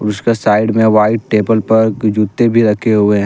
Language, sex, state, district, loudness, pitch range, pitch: Hindi, male, Jharkhand, Deoghar, -12 LUFS, 105-110 Hz, 110 Hz